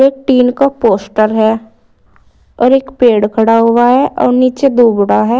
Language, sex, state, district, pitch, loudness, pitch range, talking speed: Hindi, female, Uttar Pradesh, Saharanpur, 240 Hz, -11 LUFS, 220-260 Hz, 165 wpm